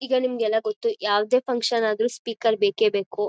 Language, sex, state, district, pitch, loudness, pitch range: Kannada, female, Karnataka, Mysore, 225 Hz, -23 LUFS, 210-240 Hz